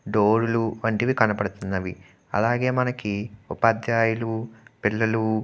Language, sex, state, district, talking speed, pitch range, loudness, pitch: Telugu, male, Andhra Pradesh, Guntur, 100 wpm, 105-115 Hz, -24 LUFS, 110 Hz